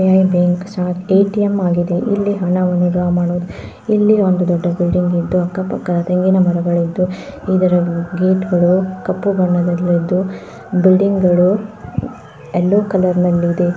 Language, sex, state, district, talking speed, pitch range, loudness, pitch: Kannada, female, Karnataka, Dharwad, 120 wpm, 175-190 Hz, -15 LUFS, 180 Hz